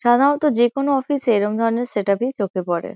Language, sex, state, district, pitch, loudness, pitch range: Bengali, female, West Bengal, Kolkata, 240 Hz, -19 LUFS, 205-275 Hz